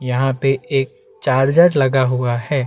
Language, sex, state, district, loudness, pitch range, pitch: Hindi, male, Chhattisgarh, Bastar, -17 LUFS, 130-140 Hz, 135 Hz